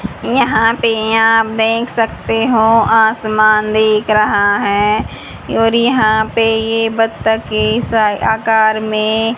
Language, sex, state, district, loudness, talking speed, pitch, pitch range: Hindi, female, Haryana, Jhajjar, -13 LUFS, 115 wpm, 220 Hz, 215-225 Hz